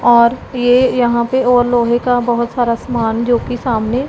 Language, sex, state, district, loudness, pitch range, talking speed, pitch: Hindi, female, Punjab, Pathankot, -14 LUFS, 235-245 Hz, 190 wpm, 245 Hz